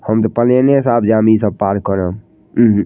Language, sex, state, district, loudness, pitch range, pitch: Maithili, male, Bihar, Madhepura, -14 LUFS, 100-120 Hz, 110 Hz